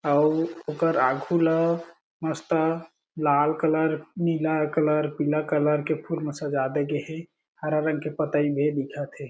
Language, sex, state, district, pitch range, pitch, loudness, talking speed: Chhattisgarhi, male, Chhattisgarh, Jashpur, 150-160 Hz, 155 Hz, -25 LUFS, 155 wpm